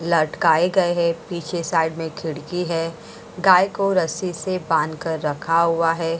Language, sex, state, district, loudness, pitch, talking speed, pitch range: Hindi, female, Maharashtra, Mumbai Suburban, -21 LUFS, 165 Hz, 165 wpm, 160-180 Hz